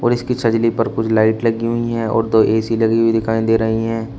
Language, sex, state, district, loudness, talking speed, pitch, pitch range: Hindi, male, Uttar Pradesh, Shamli, -17 LUFS, 260 wpm, 115 Hz, 110-115 Hz